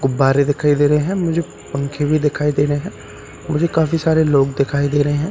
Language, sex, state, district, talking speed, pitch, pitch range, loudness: Hindi, male, Bihar, Katihar, 250 wpm, 145 Hz, 140-155 Hz, -17 LUFS